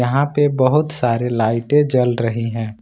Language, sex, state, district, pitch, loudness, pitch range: Hindi, male, Jharkhand, Ranchi, 125 Hz, -17 LUFS, 115-145 Hz